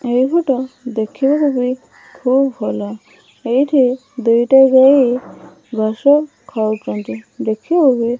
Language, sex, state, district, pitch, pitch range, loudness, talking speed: Odia, female, Odisha, Malkangiri, 255 Hz, 220-270 Hz, -15 LUFS, 90 wpm